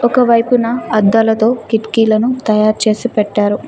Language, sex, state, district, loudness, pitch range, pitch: Telugu, female, Telangana, Mahabubabad, -13 LUFS, 215-240 Hz, 225 Hz